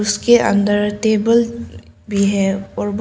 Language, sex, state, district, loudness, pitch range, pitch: Hindi, female, Arunachal Pradesh, Papum Pare, -16 LUFS, 200-230 Hz, 210 Hz